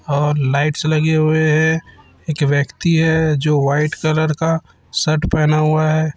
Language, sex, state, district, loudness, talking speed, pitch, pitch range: Hindi, male, Chhattisgarh, Raipur, -16 LUFS, 155 wpm, 155 Hz, 150-160 Hz